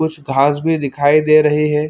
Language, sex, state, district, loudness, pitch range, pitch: Hindi, male, Chhattisgarh, Bilaspur, -14 LUFS, 145-155 Hz, 150 Hz